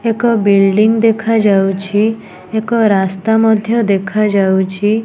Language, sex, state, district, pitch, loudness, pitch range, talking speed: Odia, female, Odisha, Nuapada, 215 Hz, -13 LUFS, 195-225 Hz, 85 wpm